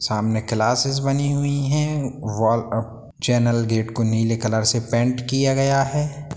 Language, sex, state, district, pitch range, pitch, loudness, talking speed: Hindi, male, Bihar, Sitamarhi, 115-135 Hz, 120 Hz, -21 LUFS, 160 wpm